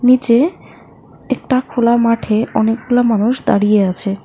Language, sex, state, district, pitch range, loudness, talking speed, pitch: Bengali, female, West Bengal, Alipurduar, 215-250 Hz, -15 LUFS, 115 wpm, 235 Hz